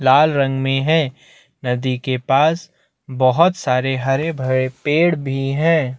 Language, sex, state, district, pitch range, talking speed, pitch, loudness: Hindi, male, Chhattisgarh, Bastar, 130-155 Hz, 150 wpm, 135 Hz, -18 LUFS